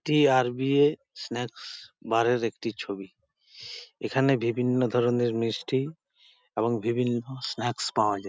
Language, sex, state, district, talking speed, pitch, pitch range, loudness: Bengali, male, West Bengal, Jhargram, 130 wpm, 120 Hz, 115-130 Hz, -27 LUFS